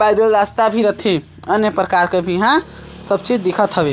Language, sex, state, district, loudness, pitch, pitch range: Chhattisgarhi, male, Chhattisgarh, Sarguja, -16 LUFS, 205 Hz, 185-215 Hz